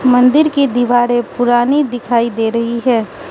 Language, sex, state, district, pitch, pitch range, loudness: Hindi, female, Mizoram, Aizawl, 245 Hz, 235-255 Hz, -13 LUFS